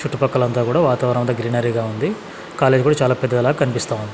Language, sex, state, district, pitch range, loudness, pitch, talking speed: Telugu, male, Andhra Pradesh, Sri Satya Sai, 120-145 Hz, -18 LUFS, 125 Hz, 205 wpm